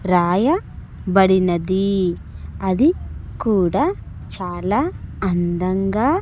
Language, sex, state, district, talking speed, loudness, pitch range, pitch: Telugu, male, Andhra Pradesh, Sri Satya Sai, 50 wpm, -19 LUFS, 180-220 Hz, 190 Hz